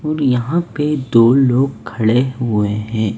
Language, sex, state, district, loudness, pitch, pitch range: Hindi, male, Maharashtra, Mumbai Suburban, -16 LUFS, 125 Hz, 110-140 Hz